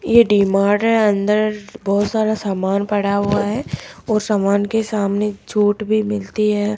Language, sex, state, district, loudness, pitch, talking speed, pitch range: Hindi, female, Rajasthan, Jaipur, -18 LUFS, 210 Hz, 175 wpm, 200-215 Hz